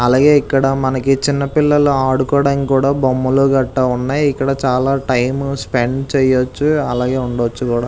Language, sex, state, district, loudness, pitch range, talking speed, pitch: Telugu, male, Andhra Pradesh, Visakhapatnam, -15 LUFS, 130-140 Hz, 135 wpm, 135 Hz